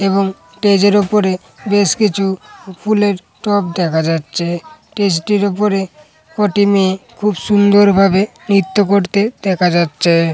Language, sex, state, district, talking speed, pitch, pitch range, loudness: Bengali, male, West Bengal, Paschim Medinipur, 115 wpm, 195 Hz, 185-205 Hz, -14 LUFS